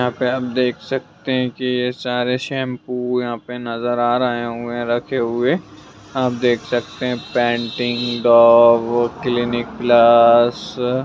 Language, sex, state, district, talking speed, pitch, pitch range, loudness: Hindi, male, Bihar, Jamui, 140 wpm, 120 Hz, 120-125 Hz, -18 LUFS